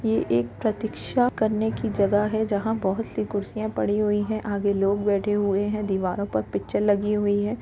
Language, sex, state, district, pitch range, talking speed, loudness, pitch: Hindi, female, Uttar Pradesh, Jalaun, 200-220 Hz, 195 wpm, -24 LUFS, 205 Hz